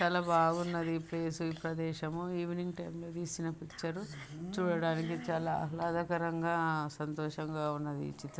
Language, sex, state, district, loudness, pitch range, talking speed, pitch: Telugu, female, Telangana, Karimnagar, -36 LUFS, 160-170 Hz, 130 wpm, 165 Hz